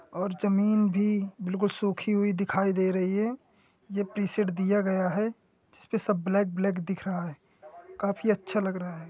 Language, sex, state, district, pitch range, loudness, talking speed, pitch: Hindi, male, Uttar Pradesh, Hamirpur, 190-210 Hz, -28 LUFS, 170 wpm, 200 Hz